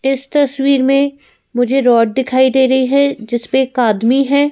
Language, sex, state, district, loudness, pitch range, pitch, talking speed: Hindi, female, Madhya Pradesh, Bhopal, -13 LUFS, 245-275 Hz, 265 Hz, 185 wpm